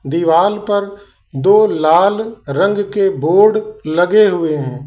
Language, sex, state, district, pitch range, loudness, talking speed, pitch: Hindi, male, Uttar Pradesh, Lalitpur, 165-215 Hz, -14 LUFS, 125 wpm, 200 Hz